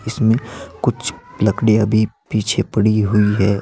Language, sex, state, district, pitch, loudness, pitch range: Hindi, male, Uttar Pradesh, Saharanpur, 110 Hz, -17 LUFS, 105-115 Hz